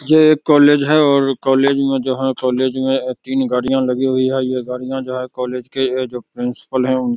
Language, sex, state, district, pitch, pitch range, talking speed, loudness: Hindi, male, Bihar, Begusarai, 130 Hz, 125-135 Hz, 225 wpm, -16 LUFS